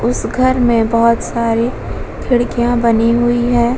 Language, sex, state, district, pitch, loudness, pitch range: Hindi, female, Uttar Pradesh, Muzaffarnagar, 240 Hz, -14 LUFS, 230-240 Hz